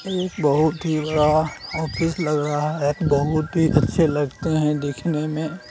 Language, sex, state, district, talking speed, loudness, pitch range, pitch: Hindi, male, Bihar, Jamui, 155 wpm, -21 LUFS, 150-160 Hz, 155 Hz